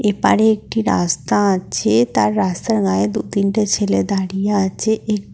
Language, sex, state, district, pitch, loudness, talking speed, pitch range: Bengali, female, West Bengal, Purulia, 195 Hz, -17 LUFS, 145 wpm, 140-210 Hz